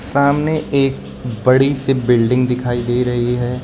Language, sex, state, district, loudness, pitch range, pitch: Hindi, male, Uttar Pradesh, Lucknow, -16 LUFS, 120-135 Hz, 125 Hz